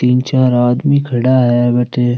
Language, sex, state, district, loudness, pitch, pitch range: Rajasthani, male, Rajasthan, Nagaur, -13 LUFS, 125 Hz, 120-130 Hz